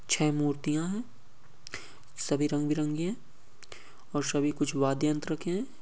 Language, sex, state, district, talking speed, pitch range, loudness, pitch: Hindi, male, Uttar Pradesh, Deoria, 135 wpm, 140-155 Hz, -30 LUFS, 150 Hz